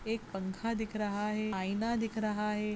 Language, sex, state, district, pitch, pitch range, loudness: Hindi, female, Maharashtra, Sindhudurg, 210 Hz, 205-220 Hz, -35 LUFS